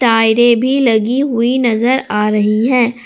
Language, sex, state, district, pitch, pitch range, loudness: Hindi, female, Jharkhand, Palamu, 235 Hz, 225-250 Hz, -13 LUFS